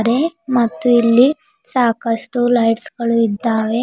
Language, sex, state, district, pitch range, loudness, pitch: Kannada, female, Karnataka, Bidar, 230-250 Hz, -16 LUFS, 240 Hz